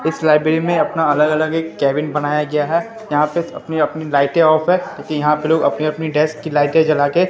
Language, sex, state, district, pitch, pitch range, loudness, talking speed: Hindi, male, Bihar, Katihar, 155 Hz, 150-160 Hz, -17 LUFS, 245 wpm